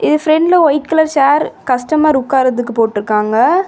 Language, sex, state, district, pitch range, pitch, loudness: Tamil, female, Tamil Nadu, Kanyakumari, 245-315 Hz, 290 Hz, -13 LUFS